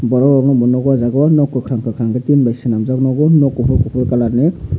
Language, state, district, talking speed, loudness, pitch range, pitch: Kokborok, Tripura, Dhalai, 190 wpm, -14 LUFS, 120-135 Hz, 125 Hz